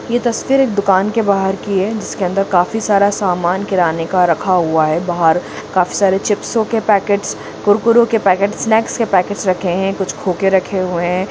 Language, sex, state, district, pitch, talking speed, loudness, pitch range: Hindi, female, Jharkhand, Jamtara, 195 Hz, 195 wpm, -15 LUFS, 180-210 Hz